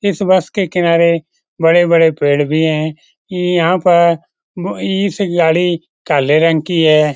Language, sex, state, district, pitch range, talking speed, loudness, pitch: Hindi, male, Bihar, Lakhisarai, 160-180 Hz, 135 wpm, -13 LUFS, 170 Hz